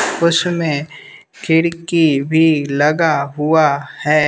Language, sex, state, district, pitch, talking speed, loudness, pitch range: Hindi, male, Bihar, West Champaran, 155 Hz, 85 wpm, -15 LUFS, 145-165 Hz